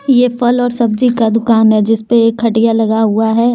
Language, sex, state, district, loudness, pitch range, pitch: Hindi, female, Jharkhand, Deoghar, -12 LUFS, 225-240 Hz, 230 Hz